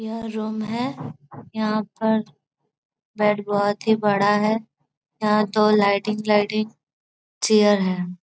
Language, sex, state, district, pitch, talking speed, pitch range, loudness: Hindi, male, Jharkhand, Jamtara, 215 Hz, 125 wpm, 205-220 Hz, -21 LUFS